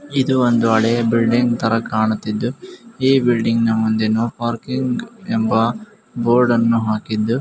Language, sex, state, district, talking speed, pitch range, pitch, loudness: Kannada, male, Karnataka, Mysore, 120 wpm, 115-130 Hz, 120 Hz, -18 LUFS